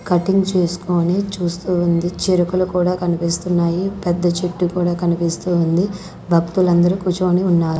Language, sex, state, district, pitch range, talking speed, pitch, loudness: Telugu, female, Andhra Pradesh, Sri Satya Sai, 170-185 Hz, 115 wpm, 175 Hz, -18 LUFS